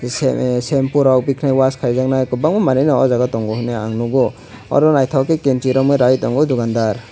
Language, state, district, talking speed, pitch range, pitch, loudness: Kokborok, Tripura, West Tripura, 200 wpm, 125-135 Hz, 130 Hz, -16 LUFS